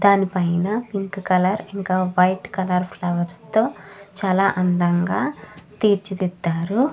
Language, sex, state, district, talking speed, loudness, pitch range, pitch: Telugu, female, Andhra Pradesh, Krishna, 105 wpm, -21 LUFS, 180-200 Hz, 190 Hz